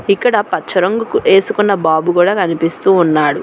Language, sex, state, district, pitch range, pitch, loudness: Telugu, female, Telangana, Hyderabad, 165-225 Hz, 195 Hz, -13 LUFS